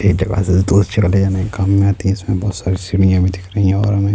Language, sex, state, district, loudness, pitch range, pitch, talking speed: Urdu, male, Bihar, Saharsa, -15 LUFS, 95-100 Hz, 95 Hz, 315 wpm